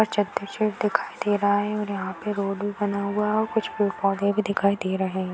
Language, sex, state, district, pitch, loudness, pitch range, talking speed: Hindi, female, Bihar, East Champaran, 205 Hz, -25 LUFS, 195-210 Hz, 260 wpm